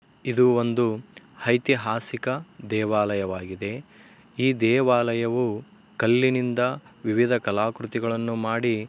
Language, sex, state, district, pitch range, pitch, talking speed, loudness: Kannada, male, Karnataka, Dharwad, 110-125 Hz, 120 Hz, 90 wpm, -24 LUFS